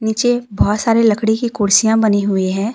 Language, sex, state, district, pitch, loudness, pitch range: Hindi, female, Jharkhand, Deoghar, 220 Hz, -15 LUFS, 205-230 Hz